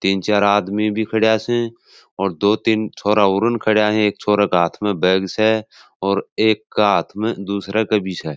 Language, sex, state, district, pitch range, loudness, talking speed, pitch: Marwari, male, Rajasthan, Churu, 100-110 Hz, -18 LUFS, 200 wpm, 105 Hz